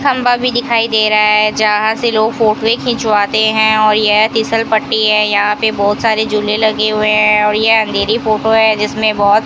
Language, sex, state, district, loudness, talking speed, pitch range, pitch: Hindi, female, Rajasthan, Bikaner, -12 LUFS, 205 wpm, 210-225 Hz, 220 Hz